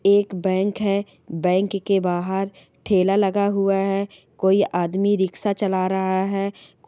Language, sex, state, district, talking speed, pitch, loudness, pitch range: Hindi, female, Chhattisgarh, Rajnandgaon, 150 wpm, 195 Hz, -21 LUFS, 190-200 Hz